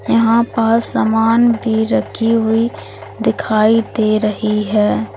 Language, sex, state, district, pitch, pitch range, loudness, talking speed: Hindi, female, Uttar Pradesh, Lalitpur, 225 Hz, 215-230 Hz, -15 LUFS, 115 wpm